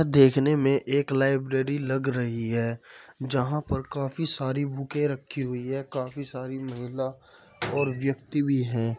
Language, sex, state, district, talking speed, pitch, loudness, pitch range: Hindi, male, Uttar Pradesh, Muzaffarnagar, 145 wpm, 135 Hz, -27 LUFS, 130-140 Hz